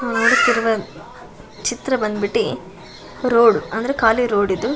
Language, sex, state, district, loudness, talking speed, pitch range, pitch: Kannada, female, Karnataka, Shimoga, -18 LUFS, 115 wpm, 210-240 Hz, 225 Hz